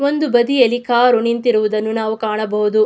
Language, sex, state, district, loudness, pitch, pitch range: Kannada, female, Karnataka, Mysore, -16 LUFS, 230 Hz, 215-245 Hz